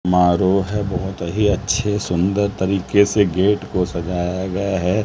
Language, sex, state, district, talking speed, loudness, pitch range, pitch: Hindi, male, Maharashtra, Mumbai Suburban, 155 wpm, -19 LUFS, 90-100 Hz, 95 Hz